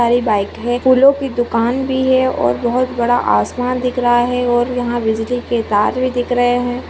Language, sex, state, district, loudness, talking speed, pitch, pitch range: Hindi, female, Goa, North and South Goa, -16 LUFS, 210 wpm, 245 Hz, 235-250 Hz